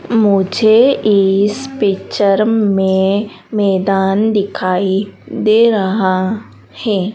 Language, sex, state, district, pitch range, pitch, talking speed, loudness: Hindi, female, Madhya Pradesh, Dhar, 195-215 Hz, 200 Hz, 75 wpm, -14 LUFS